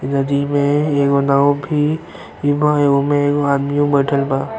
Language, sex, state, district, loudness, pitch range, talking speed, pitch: Bhojpuri, male, Uttar Pradesh, Ghazipur, -16 LUFS, 140-145 Hz, 145 wpm, 145 Hz